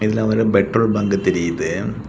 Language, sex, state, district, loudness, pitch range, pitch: Tamil, male, Tamil Nadu, Kanyakumari, -18 LUFS, 100-110 Hz, 105 Hz